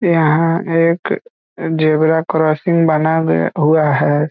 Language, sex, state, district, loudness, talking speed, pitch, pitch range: Hindi, male, Bihar, East Champaran, -15 LUFS, 110 wpm, 160 Hz, 155-165 Hz